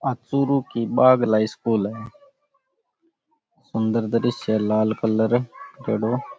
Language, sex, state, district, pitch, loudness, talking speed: Rajasthani, male, Rajasthan, Churu, 120 Hz, -22 LUFS, 115 wpm